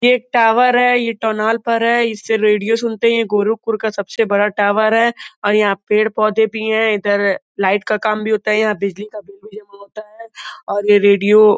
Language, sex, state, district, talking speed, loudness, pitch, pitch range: Hindi, male, Uttar Pradesh, Gorakhpur, 215 wpm, -15 LUFS, 215 Hz, 205-225 Hz